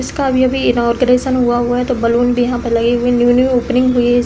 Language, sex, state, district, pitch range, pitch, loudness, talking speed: Hindi, female, Uttar Pradesh, Deoria, 240-255 Hz, 245 Hz, -14 LUFS, 265 wpm